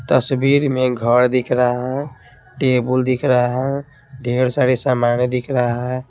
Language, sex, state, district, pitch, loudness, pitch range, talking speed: Hindi, male, Bihar, Patna, 125 Hz, -18 LUFS, 125-135 Hz, 155 wpm